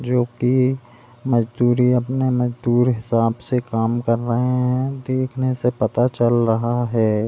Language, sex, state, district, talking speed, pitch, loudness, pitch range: Hindi, female, Goa, North and South Goa, 140 wpm, 120 Hz, -20 LUFS, 120-125 Hz